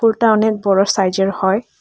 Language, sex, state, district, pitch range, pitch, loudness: Bengali, female, Tripura, West Tripura, 195-220 Hz, 200 Hz, -15 LUFS